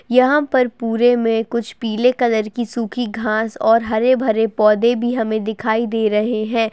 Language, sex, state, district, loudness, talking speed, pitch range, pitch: Hindi, female, Bihar, Bhagalpur, -17 LUFS, 180 wpm, 220-245 Hz, 230 Hz